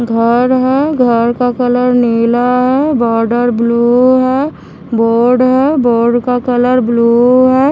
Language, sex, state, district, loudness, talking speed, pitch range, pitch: Hindi, female, Haryana, Charkhi Dadri, -11 LUFS, 130 wpm, 235-255 Hz, 245 Hz